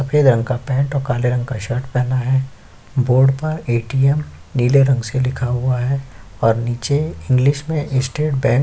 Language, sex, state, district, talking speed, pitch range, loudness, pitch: Hindi, male, Chhattisgarh, Korba, 180 wpm, 125-140 Hz, -18 LUFS, 130 Hz